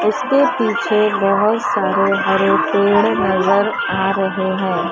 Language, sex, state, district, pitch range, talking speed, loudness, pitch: Hindi, female, Maharashtra, Mumbai Suburban, 195-210 Hz, 120 wpm, -16 LUFS, 195 Hz